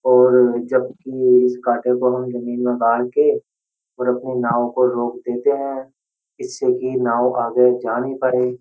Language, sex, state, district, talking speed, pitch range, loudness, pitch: Hindi, male, Uttar Pradesh, Jyotiba Phule Nagar, 165 wpm, 120-130 Hz, -18 LUFS, 125 Hz